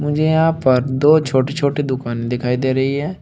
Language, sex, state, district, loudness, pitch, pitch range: Hindi, male, Uttar Pradesh, Shamli, -17 LUFS, 140 Hz, 130-150 Hz